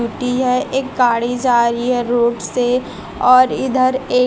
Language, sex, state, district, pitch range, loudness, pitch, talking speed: Hindi, female, Chhattisgarh, Raipur, 240-255 Hz, -16 LUFS, 250 Hz, 155 wpm